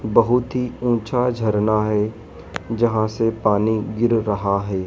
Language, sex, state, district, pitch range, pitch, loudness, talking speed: Hindi, male, Madhya Pradesh, Dhar, 105-115 Hz, 110 Hz, -20 LUFS, 135 wpm